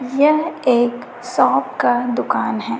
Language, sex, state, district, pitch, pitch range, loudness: Hindi, female, Chhattisgarh, Raipur, 250 Hz, 245-300 Hz, -17 LUFS